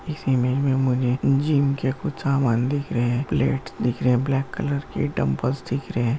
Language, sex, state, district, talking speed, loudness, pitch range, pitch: Hindi, male, Bihar, Gaya, 215 wpm, -23 LUFS, 125-140 Hz, 130 Hz